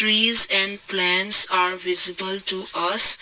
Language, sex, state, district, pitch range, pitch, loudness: English, male, Assam, Kamrup Metropolitan, 180-195 Hz, 190 Hz, -17 LUFS